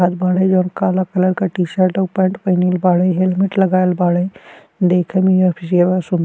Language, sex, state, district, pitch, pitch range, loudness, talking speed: Bhojpuri, male, Uttar Pradesh, Gorakhpur, 185 Hz, 180-185 Hz, -16 LUFS, 155 wpm